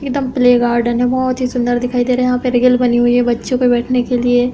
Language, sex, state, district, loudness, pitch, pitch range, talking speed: Hindi, female, Uttar Pradesh, Hamirpur, -14 LUFS, 245 Hz, 245-250 Hz, 290 wpm